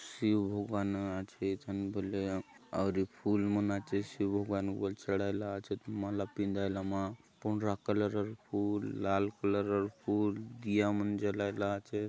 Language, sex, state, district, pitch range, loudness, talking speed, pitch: Halbi, male, Chhattisgarh, Bastar, 100-105 Hz, -35 LUFS, 170 wpm, 100 Hz